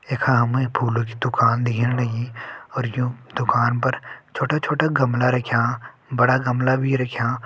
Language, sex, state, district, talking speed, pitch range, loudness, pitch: Hindi, male, Uttarakhand, Tehri Garhwal, 135 wpm, 120-130 Hz, -21 LUFS, 125 Hz